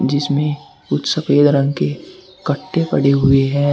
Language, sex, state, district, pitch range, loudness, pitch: Hindi, male, Uttar Pradesh, Shamli, 135-145 Hz, -16 LUFS, 140 Hz